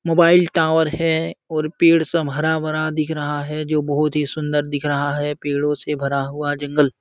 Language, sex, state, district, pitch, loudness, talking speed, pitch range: Hindi, male, Uttar Pradesh, Jalaun, 150 Hz, -19 LUFS, 195 wpm, 145-160 Hz